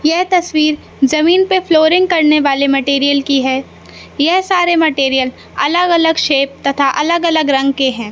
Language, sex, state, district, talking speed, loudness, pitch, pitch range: Hindi, male, Madhya Pradesh, Katni, 165 wpm, -13 LUFS, 300 Hz, 275-340 Hz